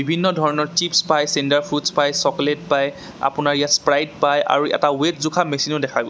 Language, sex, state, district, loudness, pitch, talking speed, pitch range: Assamese, male, Assam, Sonitpur, -19 LUFS, 145 Hz, 195 wpm, 145-155 Hz